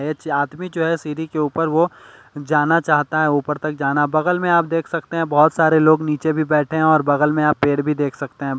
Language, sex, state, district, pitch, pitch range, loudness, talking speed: Hindi, male, Delhi, New Delhi, 155 Hz, 145-160 Hz, -18 LUFS, 230 wpm